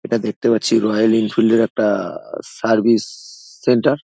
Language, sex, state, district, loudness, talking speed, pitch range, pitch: Bengali, male, West Bengal, Dakshin Dinajpur, -17 LUFS, 150 wpm, 110-115 Hz, 115 Hz